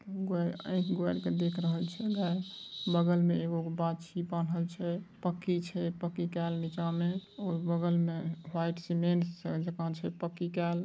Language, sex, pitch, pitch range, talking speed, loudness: Angika, male, 170 Hz, 170-180 Hz, 145 wpm, -33 LUFS